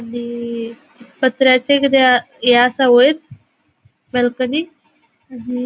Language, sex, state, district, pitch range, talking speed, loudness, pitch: Konkani, female, Goa, North and South Goa, 245-265 Hz, 95 wpm, -15 LUFS, 250 Hz